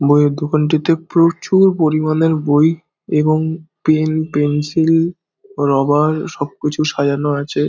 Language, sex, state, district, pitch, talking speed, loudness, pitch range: Bengali, male, West Bengal, Dakshin Dinajpur, 155 Hz, 100 wpm, -16 LUFS, 145-165 Hz